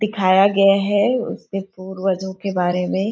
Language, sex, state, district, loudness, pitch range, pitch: Hindi, female, Chhattisgarh, Sarguja, -19 LUFS, 190-205 Hz, 195 Hz